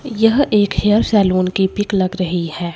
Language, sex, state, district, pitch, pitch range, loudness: Hindi, female, Chandigarh, Chandigarh, 200 Hz, 185-215 Hz, -16 LUFS